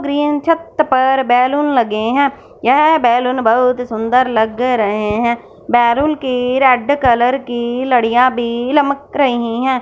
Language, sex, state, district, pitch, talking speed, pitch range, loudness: Hindi, female, Punjab, Fazilka, 250 Hz, 140 wpm, 235-280 Hz, -14 LUFS